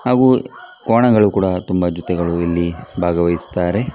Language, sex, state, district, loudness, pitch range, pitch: Kannada, male, Karnataka, Dakshina Kannada, -17 LUFS, 85-115 Hz, 90 Hz